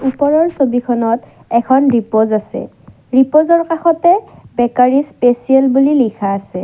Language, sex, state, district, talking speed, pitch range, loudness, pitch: Assamese, female, Assam, Kamrup Metropolitan, 110 wpm, 235-290 Hz, -13 LUFS, 260 Hz